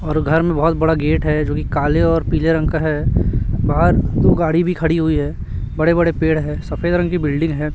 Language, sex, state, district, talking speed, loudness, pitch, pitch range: Hindi, male, Chhattisgarh, Raipur, 225 wpm, -17 LUFS, 155 Hz, 145-165 Hz